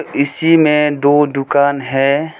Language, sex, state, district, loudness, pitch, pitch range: Hindi, male, Arunachal Pradesh, Lower Dibang Valley, -13 LUFS, 145 Hz, 140-150 Hz